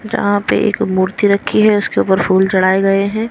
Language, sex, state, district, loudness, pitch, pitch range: Hindi, female, Haryana, Rohtak, -14 LUFS, 200 Hz, 190-215 Hz